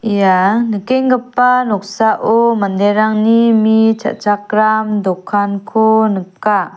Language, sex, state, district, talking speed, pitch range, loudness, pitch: Garo, female, Meghalaya, South Garo Hills, 70 wpm, 205-225 Hz, -13 LUFS, 215 Hz